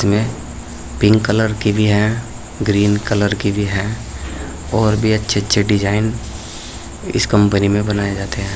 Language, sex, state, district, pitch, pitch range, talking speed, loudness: Hindi, male, Uttar Pradesh, Saharanpur, 105 Hz, 100-110 Hz, 155 wpm, -17 LUFS